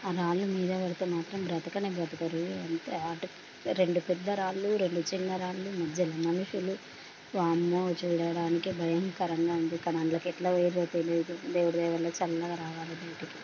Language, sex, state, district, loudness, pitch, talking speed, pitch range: Telugu, female, Andhra Pradesh, Chittoor, -32 LUFS, 175 Hz, 130 wpm, 170-185 Hz